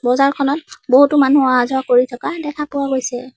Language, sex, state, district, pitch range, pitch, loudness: Assamese, female, Assam, Sonitpur, 255-285 Hz, 270 Hz, -16 LUFS